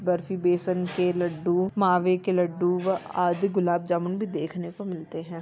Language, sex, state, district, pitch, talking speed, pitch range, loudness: Hindi, female, Jharkhand, Jamtara, 180 Hz, 175 wpm, 175-185 Hz, -26 LUFS